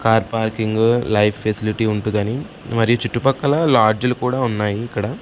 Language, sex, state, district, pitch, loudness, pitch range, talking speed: Telugu, male, Andhra Pradesh, Sri Satya Sai, 115 Hz, -18 LUFS, 110-125 Hz, 140 wpm